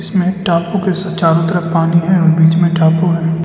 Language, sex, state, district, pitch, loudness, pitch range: Hindi, male, Arunachal Pradesh, Lower Dibang Valley, 170 Hz, -13 LUFS, 165-180 Hz